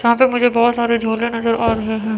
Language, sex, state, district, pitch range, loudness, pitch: Hindi, female, Chandigarh, Chandigarh, 225-235 Hz, -16 LUFS, 230 Hz